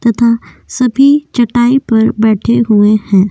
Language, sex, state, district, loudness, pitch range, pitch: Hindi, female, Uttar Pradesh, Jyotiba Phule Nagar, -11 LUFS, 215-245 Hz, 230 Hz